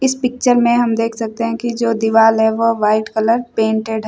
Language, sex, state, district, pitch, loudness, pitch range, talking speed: Hindi, female, Uttar Pradesh, Shamli, 230 Hz, -15 LUFS, 220-240 Hz, 235 wpm